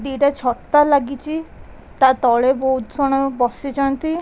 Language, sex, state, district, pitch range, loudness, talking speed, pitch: Odia, female, Odisha, Khordha, 260-285 Hz, -18 LUFS, 140 wpm, 275 Hz